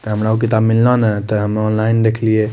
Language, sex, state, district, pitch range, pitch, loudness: Maithili, male, Bihar, Madhepura, 110-115 Hz, 110 Hz, -15 LUFS